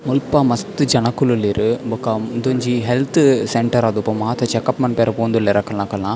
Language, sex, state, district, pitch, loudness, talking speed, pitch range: Tulu, male, Karnataka, Dakshina Kannada, 120 Hz, -17 LUFS, 125 wpm, 110-130 Hz